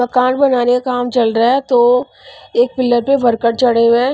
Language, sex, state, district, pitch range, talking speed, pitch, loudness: Hindi, female, Punjab, Pathankot, 240-255 Hz, 215 wpm, 245 Hz, -14 LUFS